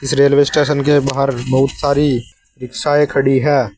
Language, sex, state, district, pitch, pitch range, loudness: Hindi, male, Uttar Pradesh, Saharanpur, 140 Hz, 135-145 Hz, -14 LUFS